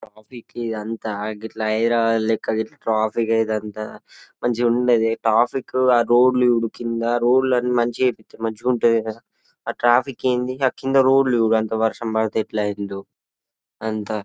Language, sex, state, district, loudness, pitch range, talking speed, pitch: Telugu, male, Telangana, Karimnagar, -20 LUFS, 110-120 Hz, 145 wpm, 115 Hz